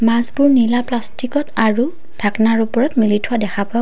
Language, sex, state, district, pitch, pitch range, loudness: Assamese, female, Assam, Kamrup Metropolitan, 235 Hz, 220-255 Hz, -17 LUFS